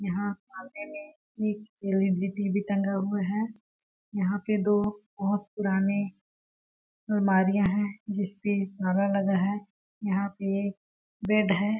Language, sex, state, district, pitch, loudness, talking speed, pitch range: Hindi, female, Chhattisgarh, Balrampur, 200 Hz, -28 LUFS, 115 wpm, 195-210 Hz